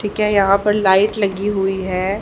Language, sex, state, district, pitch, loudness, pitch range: Hindi, female, Haryana, Jhajjar, 200 Hz, -16 LUFS, 195-210 Hz